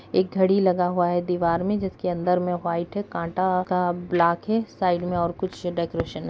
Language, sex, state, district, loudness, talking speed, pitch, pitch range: Kumaoni, female, Uttarakhand, Uttarkashi, -24 LUFS, 210 wpm, 180 Hz, 175-185 Hz